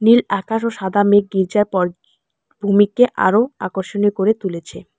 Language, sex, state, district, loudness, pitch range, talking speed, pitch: Bengali, female, West Bengal, Alipurduar, -17 LUFS, 190-220 Hz, 145 wpm, 205 Hz